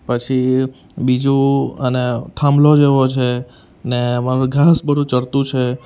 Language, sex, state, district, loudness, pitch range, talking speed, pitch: Gujarati, male, Gujarat, Valsad, -16 LUFS, 125-140 Hz, 115 wpm, 130 Hz